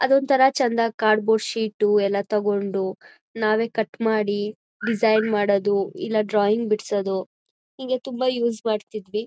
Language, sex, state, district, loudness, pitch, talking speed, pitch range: Kannada, female, Karnataka, Mysore, -22 LUFS, 215 Hz, 130 wpm, 205-230 Hz